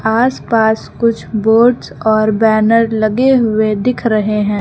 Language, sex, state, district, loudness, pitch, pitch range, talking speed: Hindi, female, Uttar Pradesh, Lucknow, -13 LUFS, 220 Hz, 215-230 Hz, 145 wpm